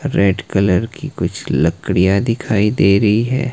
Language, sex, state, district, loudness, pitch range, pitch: Hindi, male, Himachal Pradesh, Shimla, -16 LUFS, 100-115 Hz, 105 Hz